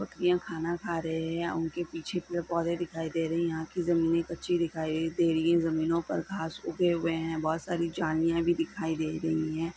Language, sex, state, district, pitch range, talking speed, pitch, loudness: Hindi, female, Bihar, Sitamarhi, 160-170 Hz, 215 wpm, 165 Hz, -30 LUFS